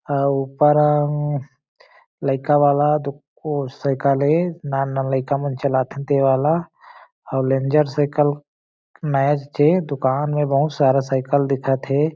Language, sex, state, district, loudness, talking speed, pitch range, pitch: Chhattisgarhi, male, Chhattisgarh, Jashpur, -19 LUFS, 150 wpm, 135-150 Hz, 140 Hz